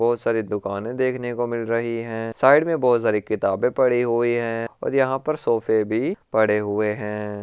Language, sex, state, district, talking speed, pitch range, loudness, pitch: Marwari, male, Rajasthan, Churu, 195 wpm, 110-120 Hz, -22 LUFS, 115 Hz